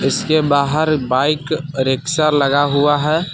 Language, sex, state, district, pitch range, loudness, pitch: Hindi, male, Jharkhand, Palamu, 140-155 Hz, -16 LUFS, 145 Hz